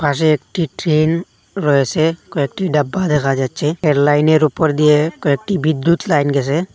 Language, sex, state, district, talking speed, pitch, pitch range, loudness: Bengali, male, Assam, Hailakandi, 150 wpm, 155 Hz, 145-165 Hz, -16 LUFS